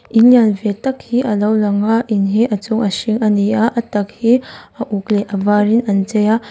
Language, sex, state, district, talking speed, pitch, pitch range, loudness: Mizo, female, Mizoram, Aizawl, 270 wpm, 215 Hz, 205-230 Hz, -15 LUFS